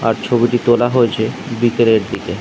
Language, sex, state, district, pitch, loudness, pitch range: Bengali, male, West Bengal, Dakshin Dinajpur, 120 Hz, -15 LUFS, 115-120 Hz